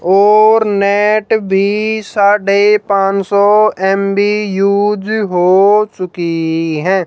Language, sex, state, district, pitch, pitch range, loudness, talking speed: Hindi, female, Haryana, Jhajjar, 200 Hz, 195-210 Hz, -12 LUFS, 95 wpm